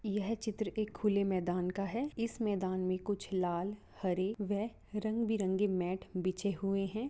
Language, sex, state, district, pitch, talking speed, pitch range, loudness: Hindi, female, Jharkhand, Sahebganj, 200 Hz, 170 wpm, 185-215 Hz, -36 LUFS